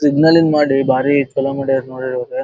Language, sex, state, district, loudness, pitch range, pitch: Kannada, male, Karnataka, Dharwad, -15 LUFS, 130-150 Hz, 140 Hz